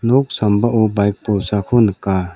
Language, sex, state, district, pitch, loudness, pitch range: Garo, male, Meghalaya, South Garo Hills, 105 Hz, -16 LUFS, 100-115 Hz